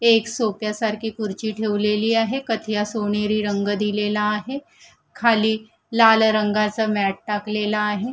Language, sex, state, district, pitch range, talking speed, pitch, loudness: Marathi, female, Maharashtra, Gondia, 210-225 Hz, 125 wpm, 215 Hz, -21 LUFS